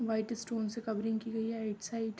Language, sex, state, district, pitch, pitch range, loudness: Hindi, female, Jharkhand, Sahebganj, 225 Hz, 220-230 Hz, -36 LUFS